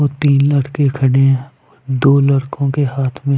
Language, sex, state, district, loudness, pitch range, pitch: Hindi, male, Punjab, Fazilka, -15 LUFS, 135-140 Hz, 140 Hz